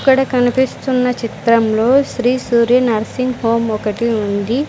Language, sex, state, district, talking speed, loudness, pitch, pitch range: Telugu, female, Andhra Pradesh, Sri Satya Sai, 115 wpm, -15 LUFS, 240 Hz, 225-255 Hz